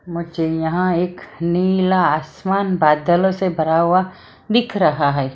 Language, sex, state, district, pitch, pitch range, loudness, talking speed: Hindi, female, Maharashtra, Mumbai Suburban, 175 Hz, 160-185 Hz, -18 LUFS, 135 wpm